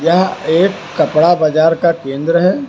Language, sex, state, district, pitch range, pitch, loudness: Hindi, male, Karnataka, Bangalore, 160-185 Hz, 170 Hz, -13 LUFS